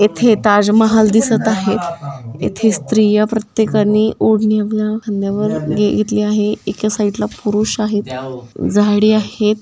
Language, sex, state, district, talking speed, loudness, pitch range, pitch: Marathi, female, Maharashtra, Dhule, 120 wpm, -15 LUFS, 205-215 Hz, 210 Hz